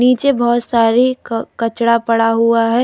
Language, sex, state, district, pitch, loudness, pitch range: Hindi, female, Delhi, New Delhi, 235 Hz, -14 LUFS, 230-245 Hz